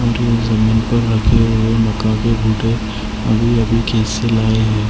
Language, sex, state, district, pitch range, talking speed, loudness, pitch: Hindi, male, Maharashtra, Washim, 110-115 Hz, 170 wpm, -15 LUFS, 110 Hz